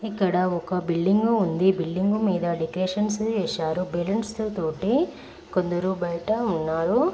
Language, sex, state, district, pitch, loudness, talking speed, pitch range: Telugu, female, Andhra Pradesh, Srikakulam, 185 Hz, -25 LUFS, 115 wpm, 175-215 Hz